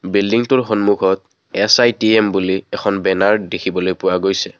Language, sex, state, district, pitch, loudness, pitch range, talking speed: Assamese, male, Assam, Kamrup Metropolitan, 100 Hz, -16 LUFS, 95-110 Hz, 105 wpm